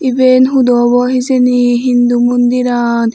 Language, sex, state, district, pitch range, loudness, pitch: Chakma, female, Tripura, Unakoti, 240-255 Hz, -10 LUFS, 245 Hz